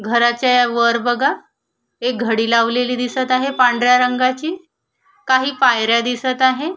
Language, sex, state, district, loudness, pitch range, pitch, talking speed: Marathi, female, Maharashtra, Solapur, -16 LUFS, 240-260 Hz, 250 Hz, 125 wpm